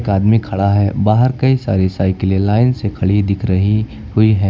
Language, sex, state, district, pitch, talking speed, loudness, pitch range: Hindi, male, Uttar Pradesh, Lucknow, 105 Hz, 200 wpm, -15 LUFS, 100-110 Hz